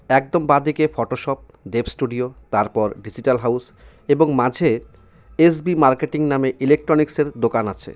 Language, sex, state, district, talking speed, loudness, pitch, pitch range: Bengali, male, West Bengal, Cooch Behar, 120 wpm, -19 LUFS, 135 Hz, 125-155 Hz